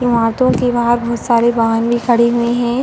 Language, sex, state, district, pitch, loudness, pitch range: Hindi, female, Uttar Pradesh, Hamirpur, 235 Hz, -14 LUFS, 235-240 Hz